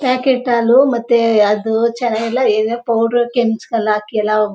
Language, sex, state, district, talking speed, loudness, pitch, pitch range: Kannada, male, Karnataka, Mysore, 145 wpm, -15 LUFS, 230 Hz, 220-240 Hz